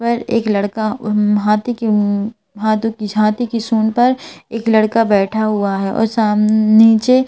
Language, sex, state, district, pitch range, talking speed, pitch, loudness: Hindi, female, Madhya Pradesh, Bhopal, 210-230 Hz, 165 wpm, 220 Hz, -15 LUFS